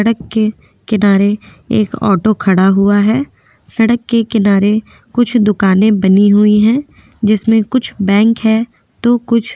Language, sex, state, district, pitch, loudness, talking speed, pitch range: Hindi, female, Maharashtra, Aurangabad, 215 Hz, -12 LUFS, 145 wpm, 205-230 Hz